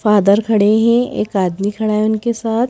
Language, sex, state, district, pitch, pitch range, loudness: Hindi, female, Madhya Pradesh, Bhopal, 215 Hz, 205-230 Hz, -15 LUFS